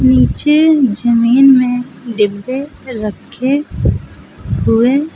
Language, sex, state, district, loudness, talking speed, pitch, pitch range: Hindi, female, Uttar Pradesh, Lucknow, -13 LUFS, 70 wpm, 250 Hz, 230-275 Hz